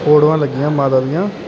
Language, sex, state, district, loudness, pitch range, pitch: Punjabi, male, Karnataka, Bangalore, -15 LUFS, 140-155 Hz, 150 Hz